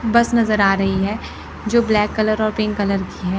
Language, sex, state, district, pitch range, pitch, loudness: Hindi, female, Chandigarh, Chandigarh, 195-220 Hz, 215 Hz, -18 LUFS